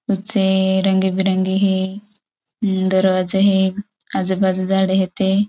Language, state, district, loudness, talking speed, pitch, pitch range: Bhili, Maharashtra, Dhule, -18 LUFS, 110 wpm, 190 Hz, 190-195 Hz